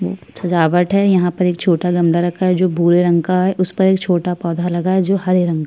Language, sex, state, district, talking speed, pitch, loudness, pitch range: Hindi, female, Chhattisgarh, Kabirdham, 265 wpm, 180 Hz, -16 LUFS, 175-185 Hz